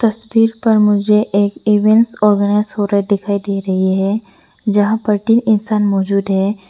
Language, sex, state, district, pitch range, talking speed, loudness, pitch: Hindi, female, Arunachal Pradesh, Lower Dibang Valley, 200-215 Hz, 170 wpm, -15 LUFS, 205 Hz